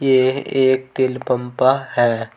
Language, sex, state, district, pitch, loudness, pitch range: Hindi, male, Uttar Pradesh, Saharanpur, 130 Hz, -18 LUFS, 125-135 Hz